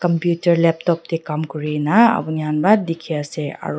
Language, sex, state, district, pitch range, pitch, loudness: Nagamese, female, Nagaland, Dimapur, 150-170 Hz, 165 Hz, -18 LUFS